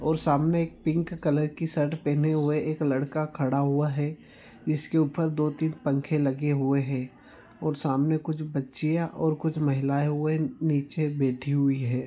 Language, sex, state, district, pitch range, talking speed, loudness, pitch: Hindi, male, Goa, North and South Goa, 140-155 Hz, 170 wpm, -27 LUFS, 150 Hz